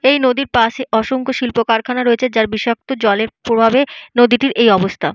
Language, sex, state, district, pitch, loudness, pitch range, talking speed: Bengali, female, Jharkhand, Jamtara, 240 Hz, -15 LUFS, 225-260 Hz, 165 wpm